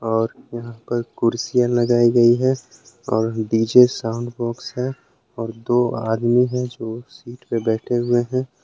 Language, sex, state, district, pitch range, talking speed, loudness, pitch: Hindi, male, Jharkhand, Palamu, 115-125 Hz, 155 wpm, -20 LUFS, 120 Hz